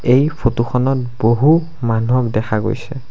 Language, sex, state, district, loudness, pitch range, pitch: Assamese, male, Assam, Sonitpur, -17 LUFS, 115-135 Hz, 125 Hz